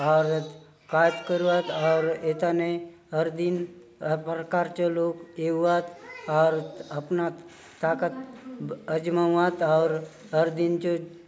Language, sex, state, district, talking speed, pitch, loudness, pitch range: Halbi, male, Chhattisgarh, Bastar, 120 wpm, 170 Hz, -26 LUFS, 160-175 Hz